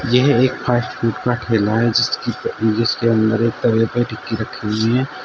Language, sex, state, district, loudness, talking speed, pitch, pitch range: Hindi, male, Uttar Pradesh, Shamli, -18 LUFS, 195 wpm, 115 Hz, 110-120 Hz